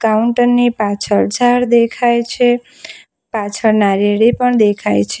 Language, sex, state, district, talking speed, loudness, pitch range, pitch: Gujarati, female, Gujarat, Valsad, 125 wpm, -14 LUFS, 210-245 Hz, 230 Hz